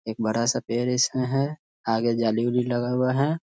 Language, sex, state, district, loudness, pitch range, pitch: Hindi, male, Bihar, Muzaffarpur, -24 LUFS, 115-130 Hz, 120 Hz